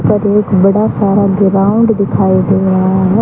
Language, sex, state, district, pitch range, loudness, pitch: Hindi, male, Haryana, Charkhi Dadri, 190-205 Hz, -11 LUFS, 195 Hz